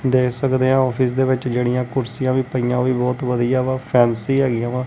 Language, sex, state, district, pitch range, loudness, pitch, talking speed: Punjabi, male, Punjab, Kapurthala, 125-130 Hz, -19 LUFS, 130 Hz, 220 wpm